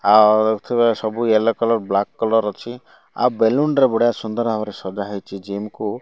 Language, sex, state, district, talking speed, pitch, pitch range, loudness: Odia, male, Odisha, Malkangiri, 170 wpm, 110 Hz, 105-115 Hz, -19 LUFS